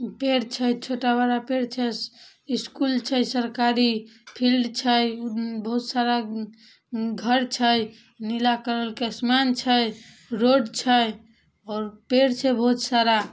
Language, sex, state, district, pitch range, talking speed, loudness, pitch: Maithili, female, Bihar, Samastipur, 225-250 Hz, 130 wpm, -23 LUFS, 240 Hz